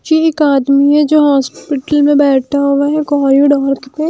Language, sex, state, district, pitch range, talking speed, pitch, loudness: Hindi, female, Haryana, Jhajjar, 275-300 Hz, 205 wpm, 285 Hz, -11 LUFS